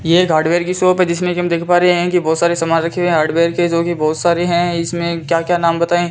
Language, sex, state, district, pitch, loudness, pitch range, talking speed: Hindi, female, Rajasthan, Bikaner, 170 Hz, -15 LUFS, 165-175 Hz, 315 wpm